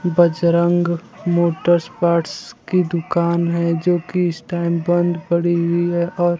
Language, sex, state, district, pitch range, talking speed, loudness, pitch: Hindi, male, Bihar, Kaimur, 170-175 Hz, 140 wpm, -18 LUFS, 170 Hz